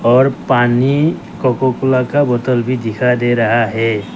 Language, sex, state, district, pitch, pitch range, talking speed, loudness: Hindi, male, Arunachal Pradesh, Lower Dibang Valley, 125 Hz, 120-130 Hz, 160 wpm, -14 LUFS